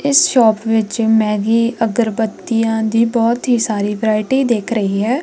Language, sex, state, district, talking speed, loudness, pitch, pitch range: Punjabi, female, Punjab, Kapurthala, 150 wpm, -15 LUFS, 225 Hz, 215-235 Hz